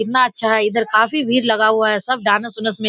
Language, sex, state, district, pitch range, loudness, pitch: Hindi, female, Bihar, Kishanganj, 215-240 Hz, -16 LUFS, 220 Hz